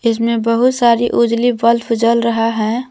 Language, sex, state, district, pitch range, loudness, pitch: Hindi, female, Jharkhand, Garhwa, 230-235 Hz, -14 LUFS, 230 Hz